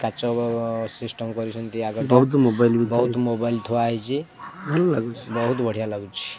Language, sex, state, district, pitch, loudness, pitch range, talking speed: Odia, male, Odisha, Khordha, 115 Hz, -23 LUFS, 115-125 Hz, 120 wpm